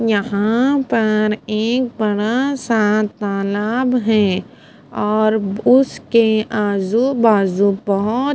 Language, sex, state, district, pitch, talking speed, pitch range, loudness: Hindi, female, Punjab, Fazilka, 215 Hz, 95 wpm, 205-235 Hz, -17 LUFS